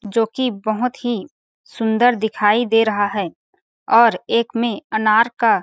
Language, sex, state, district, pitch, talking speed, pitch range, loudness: Hindi, female, Chhattisgarh, Balrampur, 225 Hz, 150 wpm, 215-235 Hz, -18 LUFS